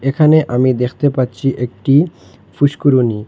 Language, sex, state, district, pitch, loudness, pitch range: Bengali, male, Assam, Hailakandi, 135 Hz, -14 LUFS, 125-145 Hz